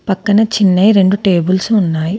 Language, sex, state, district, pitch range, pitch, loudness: Telugu, female, Telangana, Komaram Bheem, 185-210 Hz, 195 Hz, -12 LUFS